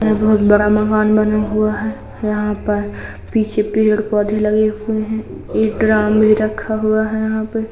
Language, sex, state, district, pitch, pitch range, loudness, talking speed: Hindi, female, Uttar Pradesh, Jalaun, 215 Hz, 210-220 Hz, -16 LUFS, 170 wpm